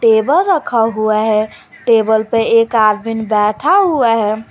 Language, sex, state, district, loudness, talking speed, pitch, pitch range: Hindi, female, Jharkhand, Garhwa, -13 LUFS, 145 wpm, 225 Hz, 215-245 Hz